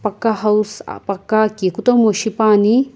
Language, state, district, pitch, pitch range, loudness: Sumi, Nagaland, Kohima, 215 Hz, 210-225 Hz, -16 LUFS